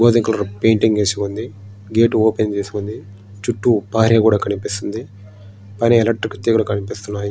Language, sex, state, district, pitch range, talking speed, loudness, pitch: Telugu, male, Andhra Pradesh, Srikakulam, 100-110 Hz, 125 wpm, -18 LUFS, 105 Hz